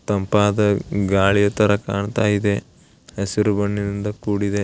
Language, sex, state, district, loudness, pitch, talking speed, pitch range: Kannada, male, Karnataka, Belgaum, -20 LUFS, 100 Hz, 105 wpm, 100-105 Hz